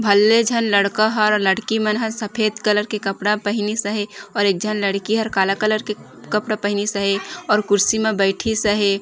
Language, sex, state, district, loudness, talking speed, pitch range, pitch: Chhattisgarhi, female, Chhattisgarh, Raigarh, -19 LUFS, 205 wpm, 200-215 Hz, 210 Hz